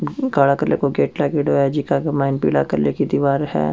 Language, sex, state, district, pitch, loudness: Rajasthani, male, Rajasthan, Churu, 140 Hz, -18 LUFS